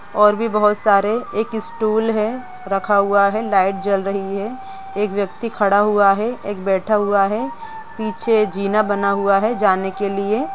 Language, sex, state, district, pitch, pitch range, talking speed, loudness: Hindi, female, Jharkhand, Sahebganj, 210 Hz, 200-225 Hz, 170 wpm, -18 LUFS